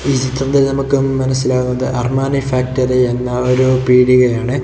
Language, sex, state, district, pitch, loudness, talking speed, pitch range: Malayalam, male, Kerala, Kozhikode, 130 Hz, -14 LUFS, 105 wpm, 125-135 Hz